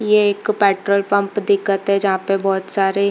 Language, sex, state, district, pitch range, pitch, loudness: Hindi, female, Chhattisgarh, Bilaspur, 195-205 Hz, 200 Hz, -17 LUFS